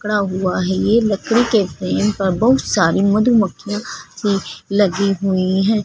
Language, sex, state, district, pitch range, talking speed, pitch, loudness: Hindi, female, Punjab, Fazilka, 190-210 Hz, 155 wpm, 200 Hz, -17 LUFS